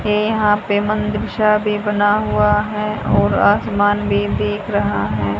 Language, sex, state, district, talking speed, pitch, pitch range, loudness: Hindi, female, Haryana, Rohtak, 165 wpm, 210 Hz, 200-210 Hz, -17 LUFS